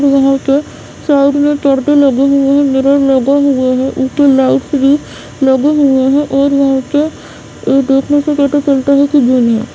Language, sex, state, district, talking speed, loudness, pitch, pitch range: Hindi, female, Bihar, Madhepura, 180 wpm, -11 LUFS, 275 Hz, 270-285 Hz